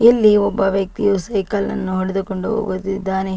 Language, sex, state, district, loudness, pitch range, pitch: Kannada, female, Karnataka, Dakshina Kannada, -18 LUFS, 190-205 Hz, 195 Hz